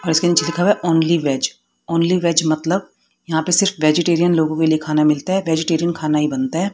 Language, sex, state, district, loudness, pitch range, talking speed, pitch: Hindi, female, Haryana, Rohtak, -17 LUFS, 155-175 Hz, 220 wpm, 165 Hz